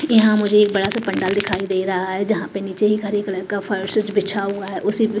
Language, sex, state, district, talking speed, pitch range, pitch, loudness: Hindi, female, Maharashtra, Mumbai Suburban, 255 wpm, 195-210 Hz, 200 Hz, -19 LUFS